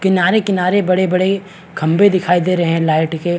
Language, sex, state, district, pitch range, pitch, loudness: Hindi, male, Chhattisgarh, Rajnandgaon, 175-190 Hz, 185 Hz, -15 LUFS